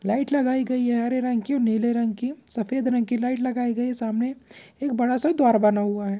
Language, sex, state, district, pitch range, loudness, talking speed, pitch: Hindi, male, Bihar, Purnia, 225-255 Hz, -23 LUFS, 230 wpm, 245 Hz